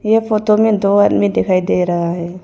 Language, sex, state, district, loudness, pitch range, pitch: Hindi, female, Arunachal Pradesh, Papum Pare, -14 LUFS, 170-215 Hz, 185 Hz